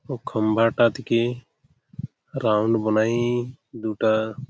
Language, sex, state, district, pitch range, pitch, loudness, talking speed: Bengali, male, West Bengal, Malda, 110-120 Hz, 115 Hz, -23 LUFS, 95 wpm